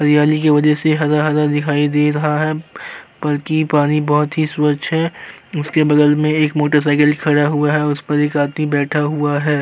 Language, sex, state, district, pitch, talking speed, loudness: Hindi, male, Uttar Pradesh, Jyotiba Phule Nagar, 150 Hz, 195 wpm, -16 LUFS